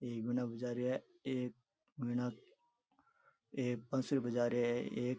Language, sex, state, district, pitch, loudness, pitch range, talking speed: Rajasthani, male, Rajasthan, Churu, 125 Hz, -39 LUFS, 120-145 Hz, 160 wpm